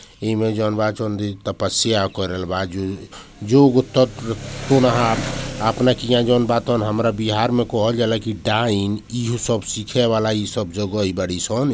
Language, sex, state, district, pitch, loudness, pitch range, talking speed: Bhojpuri, male, Bihar, Gopalganj, 110 Hz, -20 LUFS, 105-120 Hz, 145 wpm